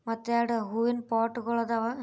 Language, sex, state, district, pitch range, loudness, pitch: Kannada, female, Karnataka, Bijapur, 230-235 Hz, -29 LUFS, 230 Hz